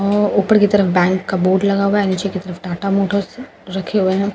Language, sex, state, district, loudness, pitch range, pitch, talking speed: Hindi, female, Bihar, Katihar, -17 LUFS, 185-200 Hz, 195 Hz, 275 wpm